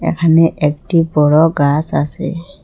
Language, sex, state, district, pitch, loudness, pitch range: Bengali, female, Assam, Hailakandi, 160 Hz, -14 LUFS, 150-170 Hz